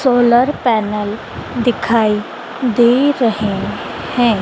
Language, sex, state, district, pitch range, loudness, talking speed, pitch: Hindi, female, Madhya Pradesh, Dhar, 215-245 Hz, -15 LUFS, 80 wpm, 235 Hz